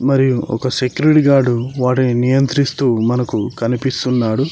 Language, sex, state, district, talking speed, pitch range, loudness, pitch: Telugu, male, Telangana, Mahabubabad, 105 wpm, 120-135 Hz, -15 LUFS, 130 Hz